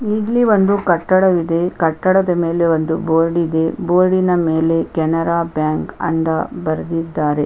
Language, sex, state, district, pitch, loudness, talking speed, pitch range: Kannada, female, Karnataka, Chamarajanagar, 170 Hz, -16 LUFS, 120 wpm, 160-185 Hz